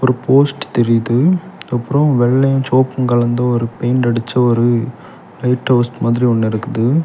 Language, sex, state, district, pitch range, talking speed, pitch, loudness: Tamil, male, Tamil Nadu, Kanyakumari, 120-130 Hz, 125 wpm, 125 Hz, -15 LUFS